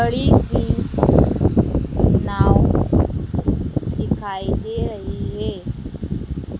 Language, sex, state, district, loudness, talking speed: Hindi, female, Madhya Pradesh, Dhar, -20 LUFS, 65 wpm